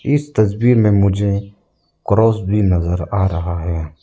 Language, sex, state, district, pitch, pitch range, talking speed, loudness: Hindi, male, Arunachal Pradesh, Lower Dibang Valley, 100 Hz, 85-110 Hz, 150 wpm, -16 LUFS